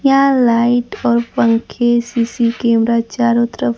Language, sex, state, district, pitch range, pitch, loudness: Hindi, female, Bihar, Kaimur, 230-240 Hz, 235 Hz, -15 LUFS